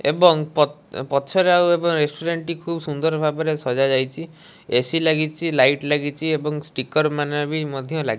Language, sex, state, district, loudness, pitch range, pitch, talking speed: Odia, male, Odisha, Malkangiri, -20 LUFS, 145-165 Hz, 155 Hz, 160 wpm